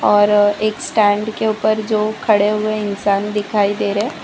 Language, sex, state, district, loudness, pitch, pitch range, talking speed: Hindi, female, Gujarat, Valsad, -16 LUFS, 210 Hz, 205-215 Hz, 170 wpm